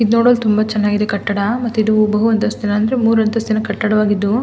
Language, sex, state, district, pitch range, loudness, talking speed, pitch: Kannada, female, Karnataka, Mysore, 210-225 Hz, -15 LUFS, 175 wpm, 215 Hz